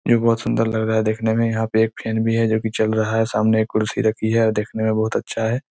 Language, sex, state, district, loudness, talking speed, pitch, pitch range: Hindi, male, Chhattisgarh, Raigarh, -20 LUFS, 315 wpm, 110 Hz, 110-115 Hz